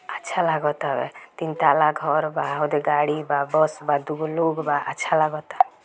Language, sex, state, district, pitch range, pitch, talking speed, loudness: Bhojpuri, female, Bihar, Gopalganj, 150-155 Hz, 155 Hz, 175 wpm, -23 LUFS